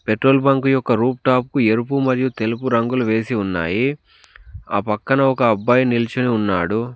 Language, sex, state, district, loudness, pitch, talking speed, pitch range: Telugu, male, Telangana, Komaram Bheem, -18 LUFS, 125 Hz, 145 wpm, 110-130 Hz